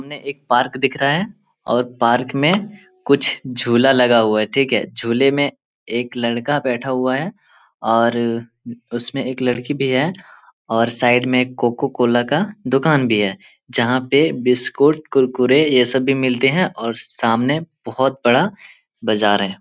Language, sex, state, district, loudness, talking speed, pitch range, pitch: Hindi, male, Bihar, Jahanabad, -17 LUFS, 170 wpm, 120-140 Hz, 130 Hz